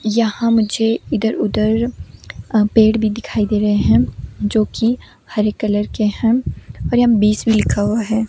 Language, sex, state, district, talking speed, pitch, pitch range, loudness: Hindi, female, Himachal Pradesh, Shimla, 175 wpm, 220 Hz, 210-225 Hz, -17 LUFS